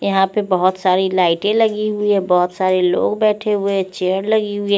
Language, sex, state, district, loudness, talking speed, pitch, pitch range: Hindi, female, Chandigarh, Chandigarh, -17 LUFS, 225 wpm, 195 Hz, 185-210 Hz